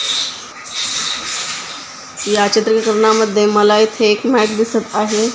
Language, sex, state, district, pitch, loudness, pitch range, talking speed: Marathi, female, Maharashtra, Pune, 220 Hz, -15 LUFS, 210-225 Hz, 90 wpm